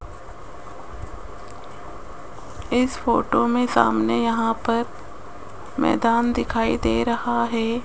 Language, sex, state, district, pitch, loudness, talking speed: Hindi, female, Rajasthan, Jaipur, 225 Hz, -21 LUFS, 85 wpm